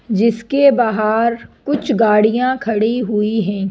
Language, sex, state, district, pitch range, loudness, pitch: Hindi, female, Madhya Pradesh, Bhopal, 215-240 Hz, -16 LUFS, 225 Hz